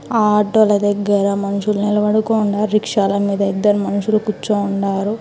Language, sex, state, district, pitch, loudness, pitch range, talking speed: Telugu, female, Telangana, Hyderabad, 205 Hz, -17 LUFS, 200-215 Hz, 115 wpm